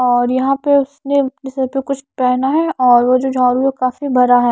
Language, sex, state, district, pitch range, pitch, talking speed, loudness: Hindi, female, Punjab, Kapurthala, 250-275 Hz, 265 Hz, 210 wpm, -15 LUFS